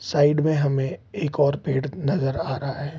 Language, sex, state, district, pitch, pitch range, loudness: Hindi, male, Bihar, East Champaran, 145 Hz, 135-150 Hz, -23 LUFS